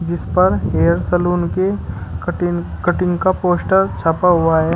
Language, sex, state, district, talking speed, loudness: Hindi, male, Uttar Pradesh, Shamli, 150 wpm, -17 LUFS